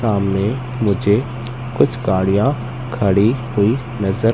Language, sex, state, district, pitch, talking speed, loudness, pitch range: Hindi, male, Madhya Pradesh, Katni, 115 Hz, 95 wpm, -18 LUFS, 100-125 Hz